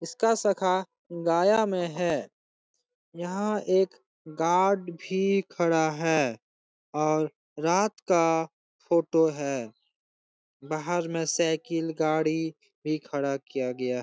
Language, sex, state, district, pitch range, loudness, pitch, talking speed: Hindi, male, Bihar, Jahanabad, 155-185 Hz, -27 LUFS, 165 Hz, 120 wpm